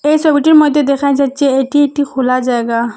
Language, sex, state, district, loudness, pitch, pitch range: Bengali, female, Assam, Hailakandi, -12 LUFS, 280 Hz, 255-290 Hz